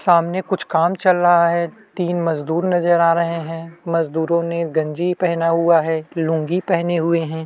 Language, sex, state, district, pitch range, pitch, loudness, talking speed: Hindi, male, Chhattisgarh, Kabirdham, 165-175 Hz, 170 Hz, -18 LUFS, 175 wpm